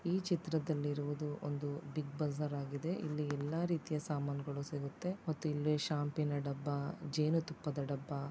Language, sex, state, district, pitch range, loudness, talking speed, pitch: Kannada, female, Karnataka, Dakshina Kannada, 145-155 Hz, -39 LUFS, 135 wpm, 150 Hz